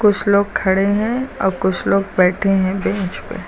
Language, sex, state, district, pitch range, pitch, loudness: Hindi, female, Uttar Pradesh, Lucknow, 190-205 Hz, 195 Hz, -17 LUFS